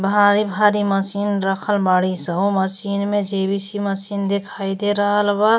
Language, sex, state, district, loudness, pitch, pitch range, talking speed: Bhojpuri, female, Uttar Pradesh, Gorakhpur, -19 LUFS, 200 Hz, 195-205 Hz, 150 wpm